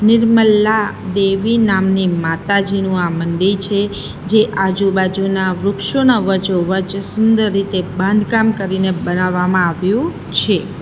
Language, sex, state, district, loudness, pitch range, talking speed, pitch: Gujarati, female, Gujarat, Valsad, -15 LUFS, 185-210 Hz, 100 wpm, 195 Hz